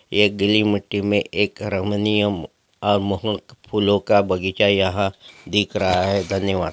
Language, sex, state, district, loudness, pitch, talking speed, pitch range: Hindi, male, Bihar, Gopalganj, -20 LUFS, 100 Hz, 115 wpm, 95-105 Hz